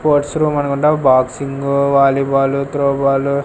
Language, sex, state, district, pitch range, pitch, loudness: Telugu, male, Andhra Pradesh, Sri Satya Sai, 135-145 Hz, 140 Hz, -15 LUFS